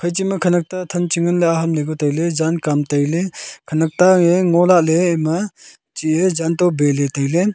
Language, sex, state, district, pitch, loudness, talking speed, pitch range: Wancho, male, Arunachal Pradesh, Longding, 170 Hz, -17 LUFS, 205 wpm, 155-180 Hz